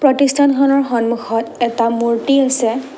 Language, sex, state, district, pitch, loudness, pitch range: Assamese, female, Assam, Kamrup Metropolitan, 250 Hz, -15 LUFS, 230-275 Hz